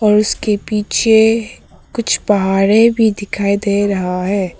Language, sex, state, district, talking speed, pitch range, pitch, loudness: Hindi, female, Arunachal Pradesh, Papum Pare, 130 wpm, 200-220 Hz, 210 Hz, -14 LUFS